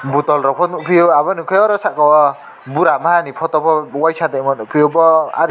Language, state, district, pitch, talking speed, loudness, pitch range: Kokborok, Tripura, West Tripura, 160 Hz, 185 wpm, -14 LUFS, 145-170 Hz